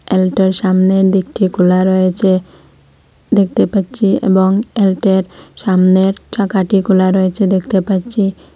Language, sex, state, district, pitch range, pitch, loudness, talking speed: Bengali, female, Assam, Hailakandi, 185-195 Hz, 190 Hz, -13 LUFS, 120 wpm